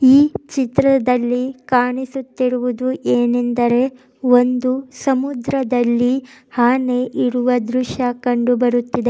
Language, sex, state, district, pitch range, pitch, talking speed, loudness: Kannada, female, Karnataka, Mysore, 245-260 Hz, 250 Hz, 60 wpm, -17 LUFS